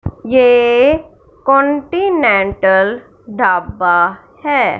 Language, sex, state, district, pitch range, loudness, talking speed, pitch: Hindi, male, Punjab, Fazilka, 195-290 Hz, -13 LUFS, 50 wpm, 250 Hz